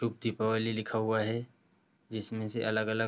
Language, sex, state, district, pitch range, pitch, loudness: Hindi, male, Bihar, East Champaran, 110-115 Hz, 110 Hz, -33 LUFS